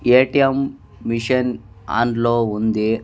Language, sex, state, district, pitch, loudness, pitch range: Telugu, male, Andhra Pradesh, Sri Satya Sai, 115 Hz, -19 LUFS, 110-125 Hz